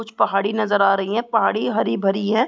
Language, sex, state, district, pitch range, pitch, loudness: Hindi, female, Bihar, East Champaran, 195-220 Hz, 205 Hz, -19 LUFS